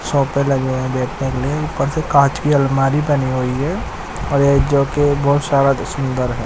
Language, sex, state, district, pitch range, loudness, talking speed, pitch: Hindi, male, Odisha, Nuapada, 130-145 Hz, -17 LUFS, 225 wpm, 140 Hz